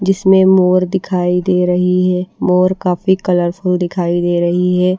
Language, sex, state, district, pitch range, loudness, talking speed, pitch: Hindi, female, Bihar, Patna, 180-185 Hz, -14 LUFS, 155 wpm, 180 Hz